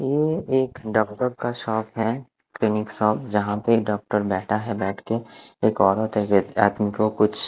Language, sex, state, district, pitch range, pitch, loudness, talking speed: Hindi, male, Bihar, West Champaran, 105-115 Hz, 110 Hz, -23 LUFS, 170 wpm